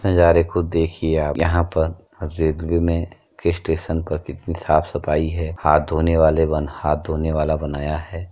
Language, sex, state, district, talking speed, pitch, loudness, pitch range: Hindi, male, Uttar Pradesh, Jyotiba Phule Nagar, 150 wpm, 80 Hz, -20 LUFS, 75-85 Hz